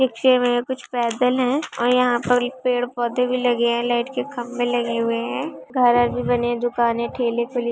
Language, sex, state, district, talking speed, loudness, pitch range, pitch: Hindi, female, Maharashtra, Solapur, 185 wpm, -21 LUFS, 240-250 Hz, 245 Hz